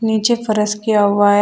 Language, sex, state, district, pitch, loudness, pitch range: Hindi, female, Uttar Pradesh, Shamli, 210 Hz, -15 LUFS, 205-220 Hz